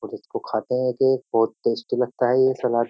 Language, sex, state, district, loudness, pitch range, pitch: Hindi, male, Uttar Pradesh, Jyotiba Phule Nagar, -22 LUFS, 115-130 Hz, 125 Hz